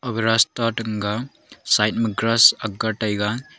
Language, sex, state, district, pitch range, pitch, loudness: Wancho, male, Arunachal Pradesh, Longding, 105-115 Hz, 115 Hz, -20 LUFS